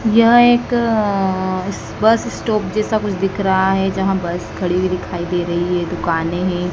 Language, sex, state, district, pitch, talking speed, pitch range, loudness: Hindi, female, Madhya Pradesh, Dhar, 190 Hz, 170 wpm, 180-215 Hz, -17 LUFS